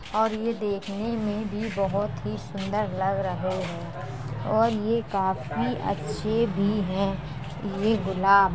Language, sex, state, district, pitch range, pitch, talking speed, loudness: Hindi, female, Uttar Pradesh, Jalaun, 170-210 Hz, 195 Hz, 135 wpm, -27 LUFS